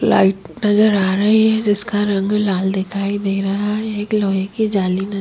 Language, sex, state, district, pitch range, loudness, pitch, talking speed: Hindi, female, Chhattisgarh, Kabirdham, 195-210 Hz, -17 LUFS, 200 Hz, 195 wpm